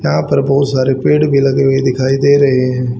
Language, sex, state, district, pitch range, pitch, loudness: Hindi, male, Haryana, Rohtak, 125-140 Hz, 135 Hz, -12 LUFS